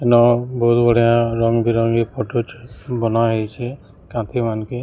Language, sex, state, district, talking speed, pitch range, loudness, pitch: Odia, male, Odisha, Sambalpur, 135 wpm, 115-120 Hz, -18 LUFS, 115 Hz